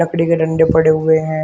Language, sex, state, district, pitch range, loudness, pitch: Hindi, male, Uttar Pradesh, Shamli, 160-165 Hz, -14 LUFS, 160 Hz